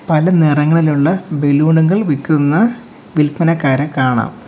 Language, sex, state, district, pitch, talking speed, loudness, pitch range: Malayalam, male, Kerala, Kollam, 155 Hz, 95 wpm, -14 LUFS, 145-165 Hz